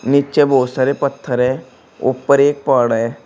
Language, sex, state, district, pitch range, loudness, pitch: Hindi, male, Uttar Pradesh, Shamli, 125-140 Hz, -16 LUFS, 135 Hz